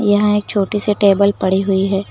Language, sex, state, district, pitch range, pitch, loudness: Hindi, female, Uttar Pradesh, Lucknow, 195-210 Hz, 200 Hz, -15 LUFS